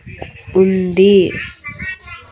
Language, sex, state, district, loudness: Telugu, female, Andhra Pradesh, Annamaya, -13 LUFS